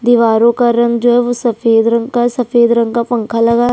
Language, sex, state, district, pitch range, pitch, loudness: Hindi, female, Chhattisgarh, Sukma, 230-240 Hz, 235 Hz, -12 LUFS